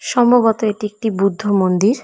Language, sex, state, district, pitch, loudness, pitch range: Bengali, female, West Bengal, Dakshin Dinajpur, 215 Hz, -16 LUFS, 200-230 Hz